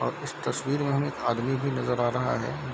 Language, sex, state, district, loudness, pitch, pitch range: Hindi, male, Bihar, Darbhanga, -28 LUFS, 125 Hz, 120-140 Hz